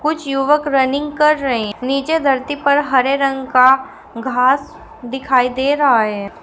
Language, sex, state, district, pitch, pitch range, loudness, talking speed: Hindi, female, Uttar Pradesh, Shamli, 270 Hz, 255-285 Hz, -15 LUFS, 160 wpm